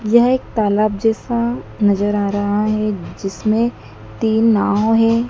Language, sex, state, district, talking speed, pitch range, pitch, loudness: Hindi, female, Madhya Pradesh, Dhar, 135 wpm, 205-230 Hz, 215 Hz, -17 LUFS